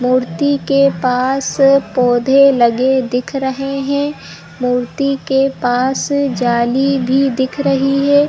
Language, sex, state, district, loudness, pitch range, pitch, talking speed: Hindi, female, Chhattisgarh, Bilaspur, -14 LUFS, 250-275 Hz, 270 Hz, 115 wpm